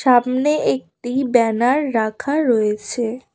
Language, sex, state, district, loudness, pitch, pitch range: Bengali, female, West Bengal, Cooch Behar, -19 LUFS, 240 Hz, 220-265 Hz